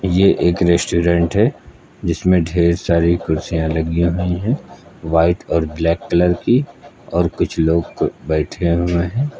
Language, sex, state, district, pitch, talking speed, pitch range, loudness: Hindi, male, Uttar Pradesh, Lucknow, 85 Hz, 140 wpm, 85-90 Hz, -17 LUFS